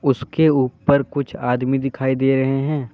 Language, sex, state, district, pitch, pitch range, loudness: Hindi, male, Jharkhand, Deoghar, 135 Hz, 130-140 Hz, -19 LUFS